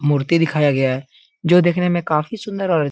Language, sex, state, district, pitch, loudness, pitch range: Hindi, male, Uttar Pradesh, Etah, 165 Hz, -18 LUFS, 145-175 Hz